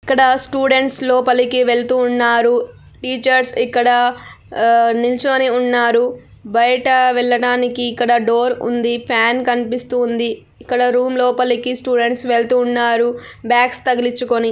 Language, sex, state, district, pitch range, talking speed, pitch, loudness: Telugu, female, Andhra Pradesh, Anantapur, 240-250 Hz, 105 wpm, 245 Hz, -15 LUFS